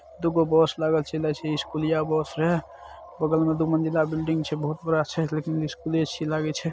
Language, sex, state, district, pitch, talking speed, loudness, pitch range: Maithili, male, Bihar, Saharsa, 160 Hz, 180 wpm, -25 LUFS, 155-160 Hz